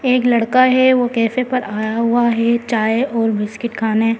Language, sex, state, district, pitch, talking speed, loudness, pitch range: Hindi, female, Delhi, New Delhi, 235 Hz, 185 wpm, -16 LUFS, 225-250 Hz